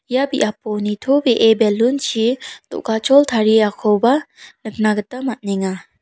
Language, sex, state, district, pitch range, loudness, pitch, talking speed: Garo, female, Meghalaya, South Garo Hills, 210-255 Hz, -17 LUFS, 220 Hz, 100 wpm